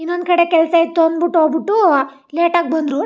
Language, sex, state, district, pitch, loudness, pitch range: Kannada, female, Karnataka, Chamarajanagar, 335 Hz, -15 LUFS, 315-345 Hz